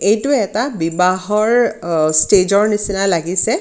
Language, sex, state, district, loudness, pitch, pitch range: Assamese, female, Assam, Kamrup Metropolitan, -15 LUFS, 195 Hz, 180-215 Hz